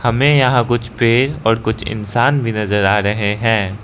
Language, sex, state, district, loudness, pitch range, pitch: Hindi, male, Arunachal Pradesh, Lower Dibang Valley, -15 LUFS, 105-120 Hz, 115 Hz